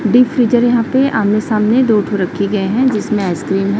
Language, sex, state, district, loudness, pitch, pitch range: Hindi, female, Chhattisgarh, Raipur, -14 LUFS, 215 Hz, 200-240 Hz